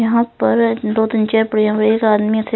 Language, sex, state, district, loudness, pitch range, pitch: Hindi, female, Punjab, Fazilka, -15 LUFS, 215-225 Hz, 220 Hz